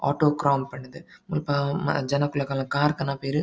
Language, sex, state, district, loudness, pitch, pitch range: Tulu, male, Karnataka, Dakshina Kannada, -25 LUFS, 140 Hz, 140-150 Hz